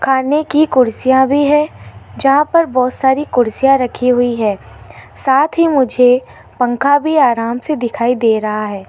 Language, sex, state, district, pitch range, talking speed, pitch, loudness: Hindi, female, Rajasthan, Jaipur, 240-290 Hz, 160 wpm, 260 Hz, -13 LUFS